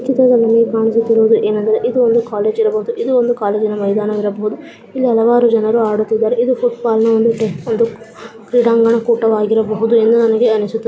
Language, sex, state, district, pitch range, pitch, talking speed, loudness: Kannada, female, Karnataka, Belgaum, 220-235 Hz, 225 Hz, 150 wpm, -14 LUFS